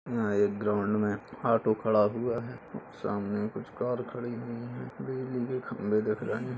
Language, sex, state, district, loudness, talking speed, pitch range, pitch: Hindi, male, Uttar Pradesh, Ghazipur, -31 LUFS, 185 wpm, 105-120 Hz, 115 Hz